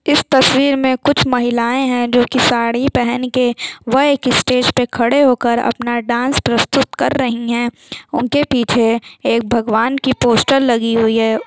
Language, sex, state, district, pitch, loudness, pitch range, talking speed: Hindi, female, Bihar, Jamui, 245 Hz, -15 LUFS, 235-265 Hz, 165 wpm